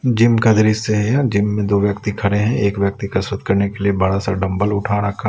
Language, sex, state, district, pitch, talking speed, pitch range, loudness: Hindi, male, Bihar, West Champaran, 105 Hz, 260 wpm, 100-110 Hz, -17 LUFS